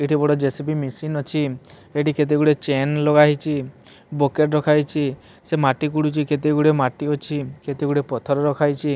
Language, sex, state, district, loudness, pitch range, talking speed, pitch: Odia, male, Odisha, Sambalpur, -20 LUFS, 140-150 Hz, 135 wpm, 150 Hz